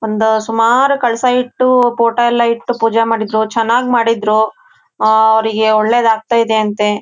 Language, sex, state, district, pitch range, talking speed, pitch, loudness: Kannada, female, Karnataka, Shimoga, 220-240 Hz, 145 wpm, 225 Hz, -13 LUFS